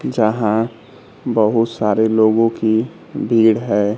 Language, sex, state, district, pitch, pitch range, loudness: Hindi, male, Bihar, Kaimur, 110 Hz, 110-115 Hz, -16 LUFS